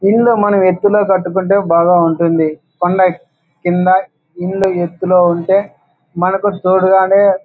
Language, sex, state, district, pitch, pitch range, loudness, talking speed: Telugu, male, Andhra Pradesh, Anantapur, 185 Hz, 175-195 Hz, -13 LUFS, 115 wpm